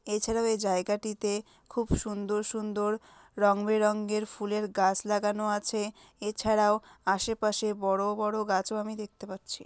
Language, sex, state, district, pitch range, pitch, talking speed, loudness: Bengali, female, West Bengal, Dakshin Dinajpur, 205-215 Hz, 210 Hz, 125 wpm, -30 LUFS